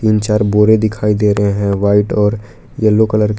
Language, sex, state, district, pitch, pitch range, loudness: Hindi, male, Jharkhand, Palamu, 105 Hz, 105-110 Hz, -13 LUFS